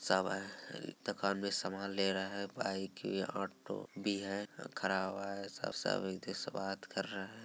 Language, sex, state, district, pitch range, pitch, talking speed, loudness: Angika, male, Bihar, Begusarai, 95-100 Hz, 100 Hz, 225 wpm, -39 LUFS